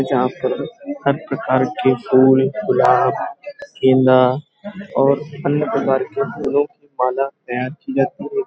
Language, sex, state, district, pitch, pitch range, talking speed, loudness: Hindi, male, Uttar Pradesh, Hamirpur, 135 Hz, 130-150 Hz, 135 wpm, -18 LUFS